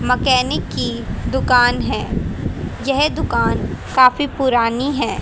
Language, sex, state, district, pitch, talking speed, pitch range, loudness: Hindi, female, Haryana, Charkhi Dadri, 260 Hz, 105 wpm, 245-285 Hz, -17 LUFS